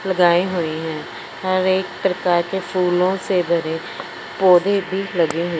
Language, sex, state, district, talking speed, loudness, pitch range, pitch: Hindi, male, Punjab, Fazilka, 140 wpm, -19 LUFS, 170-190 Hz, 180 Hz